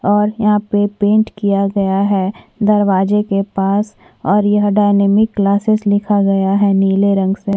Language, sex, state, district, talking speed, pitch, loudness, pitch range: Hindi, female, Chhattisgarh, Korba, 175 wpm, 205 Hz, -14 LUFS, 195-210 Hz